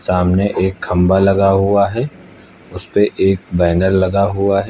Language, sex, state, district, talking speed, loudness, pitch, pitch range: Hindi, male, Uttar Pradesh, Lucknow, 165 wpm, -15 LUFS, 95 Hz, 90-100 Hz